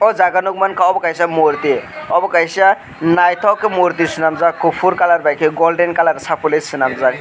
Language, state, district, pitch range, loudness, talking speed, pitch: Kokborok, Tripura, West Tripura, 155-180 Hz, -14 LUFS, 165 wpm, 170 Hz